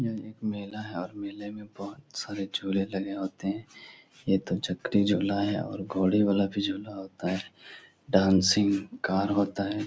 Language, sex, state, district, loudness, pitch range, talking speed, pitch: Hindi, male, Uttar Pradesh, Etah, -29 LUFS, 95-105 Hz, 175 wpm, 100 Hz